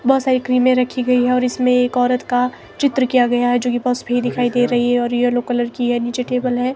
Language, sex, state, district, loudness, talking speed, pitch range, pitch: Hindi, female, Himachal Pradesh, Shimla, -17 LUFS, 255 wpm, 245-250 Hz, 245 Hz